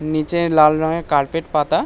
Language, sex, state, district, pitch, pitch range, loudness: Bengali, male, West Bengal, North 24 Parganas, 155 Hz, 150-165 Hz, -17 LUFS